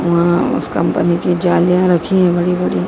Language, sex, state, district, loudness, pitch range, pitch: Hindi, female, Madhya Pradesh, Dhar, -14 LUFS, 170-180 Hz, 175 Hz